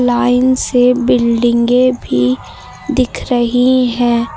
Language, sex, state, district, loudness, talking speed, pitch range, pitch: Hindi, female, Uttar Pradesh, Lucknow, -13 LUFS, 95 wpm, 240-250 Hz, 245 Hz